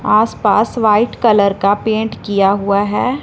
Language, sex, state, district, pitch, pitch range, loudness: Hindi, female, Punjab, Fazilka, 210 Hz, 200-220 Hz, -14 LUFS